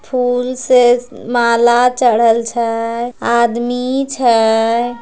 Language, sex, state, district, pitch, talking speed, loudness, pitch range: Angika, female, Bihar, Begusarai, 240 Hz, 95 wpm, -14 LUFS, 235-250 Hz